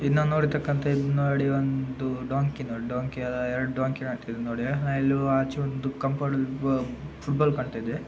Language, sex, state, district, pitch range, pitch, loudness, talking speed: Kannada, male, Karnataka, Dakshina Kannada, 130-140 Hz, 135 Hz, -27 LUFS, 150 wpm